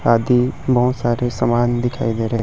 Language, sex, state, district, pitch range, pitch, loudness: Hindi, male, Chhattisgarh, Raipur, 115-125 Hz, 120 Hz, -18 LUFS